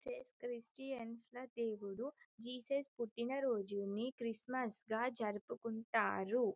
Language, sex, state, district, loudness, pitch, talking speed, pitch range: Telugu, female, Telangana, Karimnagar, -43 LUFS, 240 Hz, 100 wpm, 225-255 Hz